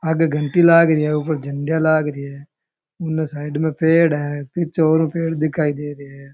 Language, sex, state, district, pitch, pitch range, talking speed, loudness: Rajasthani, male, Rajasthan, Churu, 155 Hz, 145-160 Hz, 190 wpm, -18 LUFS